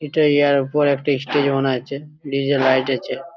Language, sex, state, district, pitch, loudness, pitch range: Bengali, male, West Bengal, Jhargram, 140 Hz, -19 LUFS, 135-145 Hz